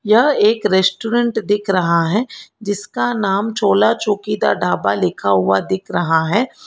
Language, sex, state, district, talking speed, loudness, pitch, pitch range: Hindi, female, Karnataka, Bangalore, 155 wpm, -17 LUFS, 205 Hz, 180-225 Hz